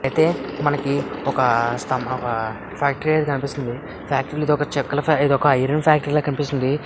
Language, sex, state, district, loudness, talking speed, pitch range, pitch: Telugu, male, Andhra Pradesh, Visakhapatnam, -21 LUFS, 130 wpm, 130-145 Hz, 140 Hz